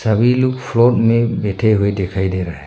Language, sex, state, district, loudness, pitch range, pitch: Hindi, male, Arunachal Pradesh, Longding, -16 LUFS, 95-120 Hz, 110 Hz